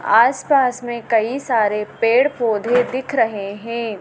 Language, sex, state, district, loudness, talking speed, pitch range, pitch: Hindi, female, Madhya Pradesh, Dhar, -18 LUFS, 135 wpm, 220-250 Hz, 235 Hz